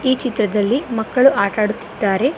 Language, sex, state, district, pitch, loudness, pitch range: Kannada, female, Karnataka, Koppal, 220 Hz, -17 LUFS, 210-260 Hz